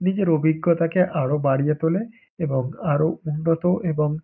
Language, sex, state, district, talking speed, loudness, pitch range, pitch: Bengali, male, West Bengal, Paschim Medinipur, 125 wpm, -22 LUFS, 150-175 Hz, 160 Hz